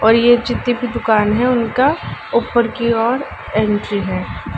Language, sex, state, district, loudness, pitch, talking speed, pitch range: Hindi, female, Uttar Pradesh, Ghazipur, -16 LUFS, 235 Hz, 155 wpm, 220-245 Hz